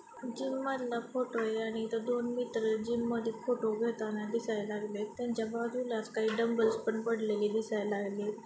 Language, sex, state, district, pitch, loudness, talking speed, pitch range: Marathi, female, Maharashtra, Sindhudurg, 225 Hz, -34 LUFS, 135 wpm, 220-235 Hz